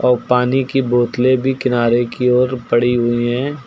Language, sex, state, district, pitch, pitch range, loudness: Hindi, male, Uttar Pradesh, Lucknow, 125 Hz, 120-130 Hz, -16 LUFS